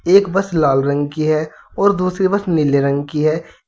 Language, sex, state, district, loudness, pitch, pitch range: Hindi, male, Uttar Pradesh, Saharanpur, -16 LUFS, 155 Hz, 145-190 Hz